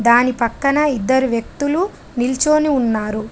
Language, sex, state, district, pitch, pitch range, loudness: Telugu, female, Telangana, Adilabad, 255 Hz, 235-285 Hz, -17 LUFS